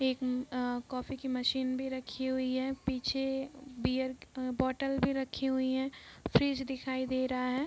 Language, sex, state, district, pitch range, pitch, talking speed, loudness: Hindi, female, Bihar, East Champaran, 255-265 Hz, 260 Hz, 190 wpm, -34 LUFS